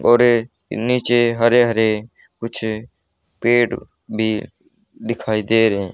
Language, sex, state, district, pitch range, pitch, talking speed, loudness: Hindi, male, Haryana, Rohtak, 110-120 Hz, 115 Hz, 120 wpm, -18 LUFS